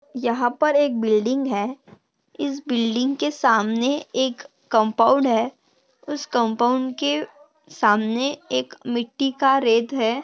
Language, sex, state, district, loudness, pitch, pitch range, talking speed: Hindi, female, Maharashtra, Dhule, -21 LUFS, 255 Hz, 230-280 Hz, 125 wpm